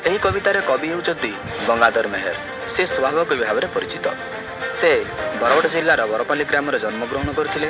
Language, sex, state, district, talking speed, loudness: Odia, male, Odisha, Malkangiri, 135 wpm, -20 LUFS